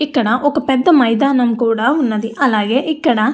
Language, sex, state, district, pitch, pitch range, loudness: Telugu, female, Andhra Pradesh, Anantapur, 260 Hz, 230-290 Hz, -14 LUFS